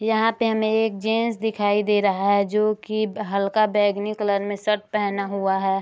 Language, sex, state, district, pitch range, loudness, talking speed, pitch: Hindi, female, Bihar, Darbhanga, 200-215 Hz, -22 LUFS, 195 wpm, 210 Hz